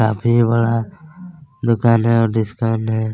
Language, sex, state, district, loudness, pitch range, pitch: Hindi, male, Chhattisgarh, Kabirdham, -17 LUFS, 110-120 Hz, 115 Hz